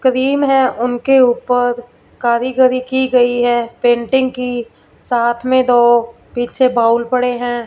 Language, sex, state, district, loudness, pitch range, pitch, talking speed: Hindi, female, Punjab, Fazilka, -14 LUFS, 240-255 Hz, 245 Hz, 135 wpm